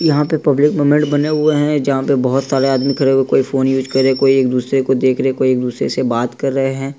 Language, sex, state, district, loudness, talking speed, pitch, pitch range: Hindi, male, Bihar, Araria, -15 LUFS, 265 wpm, 135 Hz, 130-145 Hz